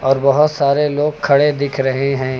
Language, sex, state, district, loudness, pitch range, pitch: Hindi, male, Uttar Pradesh, Lucknow, -15 LUFS, 135-145 Hz, 140 Hz